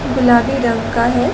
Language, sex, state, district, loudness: Hindi, female, Chhattisgarh, Raigarh, -15 LUFS